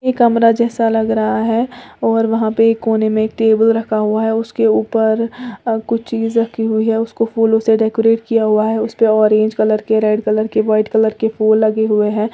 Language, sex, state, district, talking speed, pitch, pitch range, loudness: Hindi, female, Uttar Pradesh, Lalitpur, 215 wpm, 225 Hz, 215-225 Hz, -15 LUFS